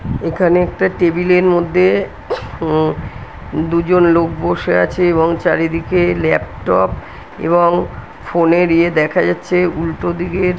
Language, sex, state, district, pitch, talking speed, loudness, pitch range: Bengali, female, West Bengal, North 24 Parganas, 170 Hz, 115 wpm, -15 LUFS, 155-175 Hz